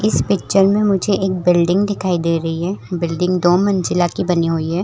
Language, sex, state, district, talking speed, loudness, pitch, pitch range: Hindi, female, Chhattisgarh, Rajnandgaon, 210 wpm, -17 LUFS, 180 Hz, 170-190 Hz